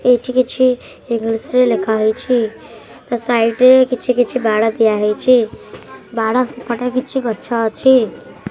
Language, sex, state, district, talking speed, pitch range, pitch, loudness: Odia, male, Odisha, Khordha, 135 wpm, 225-255 Hz, 240 Hz, -15 LUFS